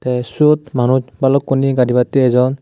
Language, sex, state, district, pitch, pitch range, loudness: Chakma, male, Tripura, Dhalai, 130 Hz, 125-135 Hz, -15 LUFS